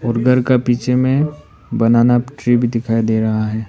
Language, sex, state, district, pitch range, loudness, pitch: Hindi, male, Arunachal Pradesh, Papum Pare, 115-125 Hz, -15 LUFS, 120 Hz